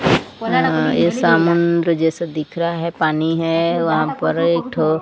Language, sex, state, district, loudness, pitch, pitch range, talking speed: Hindi, female, Odisha, Sambalpur, -17 LUFS, 165 Hz, 160-170 Hz, 155 wpm